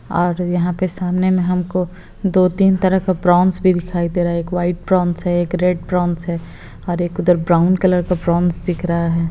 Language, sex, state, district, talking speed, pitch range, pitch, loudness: Hindi, female, Bihar, Muzaffarpur, 210 wpm, 175-185 Hz, 180 Hz, -17 LUFS